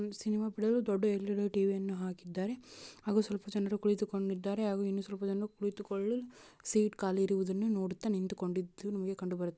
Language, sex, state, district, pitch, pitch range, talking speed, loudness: Kannada, female, Karnataka, Bijapur, 200 Hz, 195-210 Hz, 150 wpm, -35 LUFS